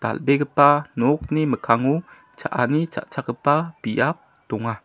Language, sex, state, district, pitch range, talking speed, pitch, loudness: Garo, male, Meghalaya, South Garo Hills, 120-150 Hz, 85 wpm, 145 Hz, -21 LUFS